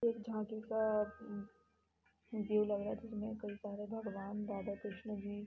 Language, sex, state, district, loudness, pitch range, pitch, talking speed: Hindi, female, Bihar, East Champaran, -41 LUFS, 205-220 Hz, 210 Hz, 155 wpm